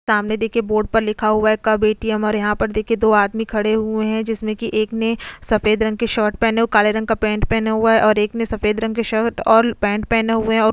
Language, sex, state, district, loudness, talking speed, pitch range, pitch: Hindi, female, Goa, North and South Goa, -18 LUFS, 275 wpm, 215-225 Hz, 220 Hz